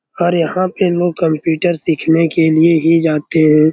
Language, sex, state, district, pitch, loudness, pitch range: Hindi, male, Bihar, Araria, 165 Hz, -14 LUFS, 160-175 Hz